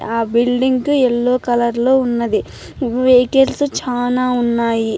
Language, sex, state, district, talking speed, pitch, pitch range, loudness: Telugu, female, Andhra Pradesh, Anantapur, 110 wpm, 245 Hz, 235-255 Hz, -16 LUFS